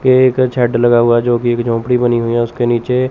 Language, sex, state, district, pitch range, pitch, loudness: Hindi, male, Chandigarh, Chandigarh, 120-125 Hz, 120 Hz, -13 LUFS